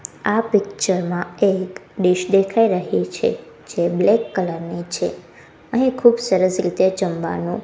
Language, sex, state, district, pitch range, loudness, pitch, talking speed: Gujarati, female, Gujarat, Gandhinagar, 175-210 Hz, -19 LUFS, 190 Hz, 140 wpm